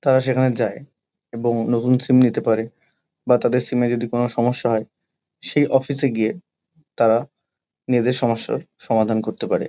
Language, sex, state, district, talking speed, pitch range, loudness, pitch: Bengali, male, West Bengal, Kolkata, 160 wpm, 115-130 Hz, -20 LUFS, 120 Hz